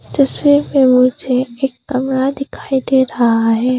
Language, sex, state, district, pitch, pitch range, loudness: Hindi, female, Arunachal Pradesh, Papum Pare, 260 Hz, 250-270 Hz, -14 LUFS